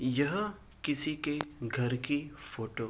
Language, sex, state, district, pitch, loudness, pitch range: Hindi, male, Uttar Pradesh, Hamirpur, 145 Hz, -33 LUFS, 125-150 Hz